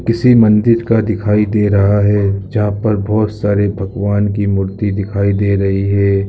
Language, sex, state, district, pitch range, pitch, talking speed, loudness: Hindi, male, Jharkhand, Sahebganj, 100-105 Hz, 100 Hz, 170 wpm, -14 LUFS